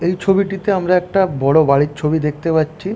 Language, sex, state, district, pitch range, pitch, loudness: Bengali, male, West Bengal, Jhargram, 150-190 Hz, 170 Hz, -16 LUFS